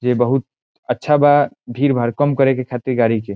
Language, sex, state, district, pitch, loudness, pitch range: Bhojpuri, male, Bihar, Saran, 130 Hz, -17 LUFS, 120-140 Hz